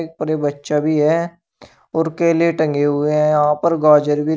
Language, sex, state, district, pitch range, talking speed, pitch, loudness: Hindi, male, Uttar Pradesh, Shamli, 150-165 Hz, 190 wpm, 155 Hz, -17 LUFS